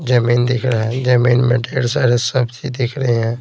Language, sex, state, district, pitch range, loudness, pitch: Hindi, male, Bihar, Patna, 120-130 Hz, -16 LUFS, 125 Hz